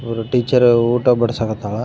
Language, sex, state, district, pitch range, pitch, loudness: Kannada, male, Karnataka, Raichur, 115-125 Hz, 120 Hz, -16 LUFS